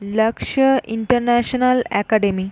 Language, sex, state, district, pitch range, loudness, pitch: Bengali, female, West Bengal, North 24 Parganas, 220-250 Hz, -18 LUFS, 230 Hz